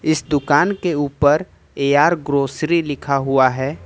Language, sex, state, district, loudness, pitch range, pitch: Hindi, male, Jharkhand, Ranchi, -17 LUFS, 140-155 Hz, 145 Hz